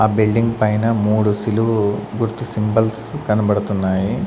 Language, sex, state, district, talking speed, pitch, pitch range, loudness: Telugu, male, Andhra Pradesh, Sri Satya Sai, 110 wpm, 110 Hz, 105-115 Hz, -18 LUFS